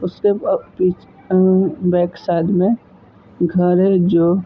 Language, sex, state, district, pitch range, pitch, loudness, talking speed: Hindi, male, Uttar Pradesh, Budaun, 175-185 Hz, 180 Hz, -17 LUFS, 150 wpm